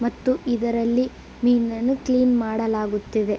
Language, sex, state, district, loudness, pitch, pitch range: Kannada, female, Karnataka, Belgaum, -22 LUFS, 235 Hz, 225-250 Hz